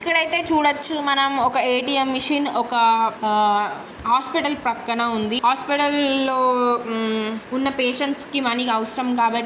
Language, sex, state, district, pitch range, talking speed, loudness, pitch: Telugu, female, Andhra Pradesh, Krishna, 235-285 Hz, 125 wpm, -20 LUFS, 255 Hz